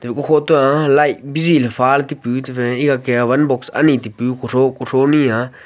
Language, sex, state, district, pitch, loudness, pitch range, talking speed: Wancho, male, Arunachal Pradesh, Longding, 135 Hz, -15 LUFS, 125-145 Hz, 160 wpm